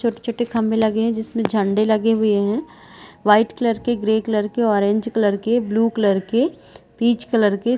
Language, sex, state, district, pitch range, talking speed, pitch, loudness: Hindi, female, Chhattisgarh, Balrampur, 210-235 Hz, 200 wpm, 220 Hz, -19 LUFS